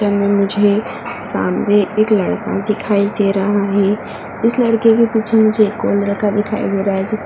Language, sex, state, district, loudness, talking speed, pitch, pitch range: Hindi, female, Uttar Pradesh, Muzaffarnagar, -15 LUFS, 180 wpm, 205 Hz, 200-215 Hz